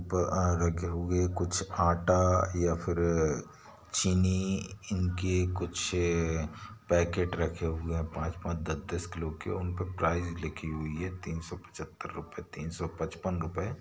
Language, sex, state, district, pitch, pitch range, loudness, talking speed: Hindi, male, Bihar, Sitamarhi, 85 Hz, 85-90 Hz, -32 LUFS, 105 wpm